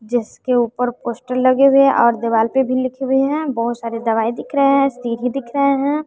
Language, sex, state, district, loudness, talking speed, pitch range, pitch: Hindi, female, Bihar, West Champaran, -17 LUFS, 225 wpm, 235-275 Hz, 255 Hz